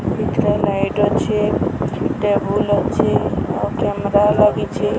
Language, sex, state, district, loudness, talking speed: Odia, female, Odisha, Sambalpur, -18 LUFS, 95 wpm